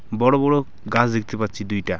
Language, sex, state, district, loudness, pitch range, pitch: Bengali, male, West Bengal, Alipurduar, -21 LUFS, 105-130 Hz, 110 Hz